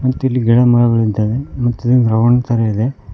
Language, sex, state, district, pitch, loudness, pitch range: Kannada, male, Karnataka, Koppal, 120 Hz, -14 LUFS, 115-125 Hz